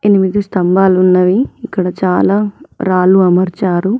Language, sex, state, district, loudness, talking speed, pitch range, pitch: Telugu, female, Telangana, Mahabubabad, -12 LUFS, 105 wpm, 185-205 Hz, 190 Hz